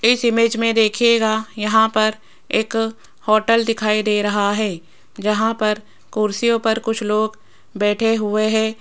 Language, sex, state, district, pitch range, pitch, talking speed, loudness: Hindi, female, Rajasthan, Jaipur, 210-225 Hz, 220 Hz, 145 wpm, -18 LUFS